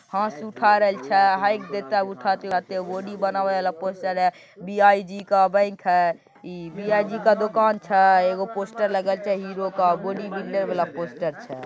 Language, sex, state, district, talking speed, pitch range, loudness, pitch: Maithili, male, Bihar, Begusarai, 145 wpm, 190-205 Hz, -22 LUFS, 195 Hz